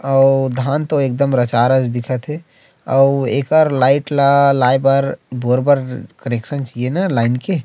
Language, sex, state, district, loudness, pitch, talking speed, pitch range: Chhattisgarhi, male, Chhattisgarh, Rajnandgaon, -16 LUFS, 135 Hz, 165 wpm, 125-140 Hz